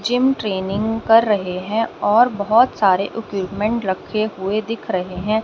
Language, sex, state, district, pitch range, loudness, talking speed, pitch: Hindi, female, Haryana, Rohtak, 195-225 Hz, -19 LUFS, 130 wpm, 215 Hz